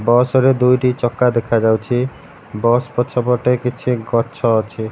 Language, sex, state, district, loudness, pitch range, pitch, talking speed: Odia, male, Odisha, Malkangiri, -16 LUFS, 115-125 Hz, 120 Hz, 120 wpm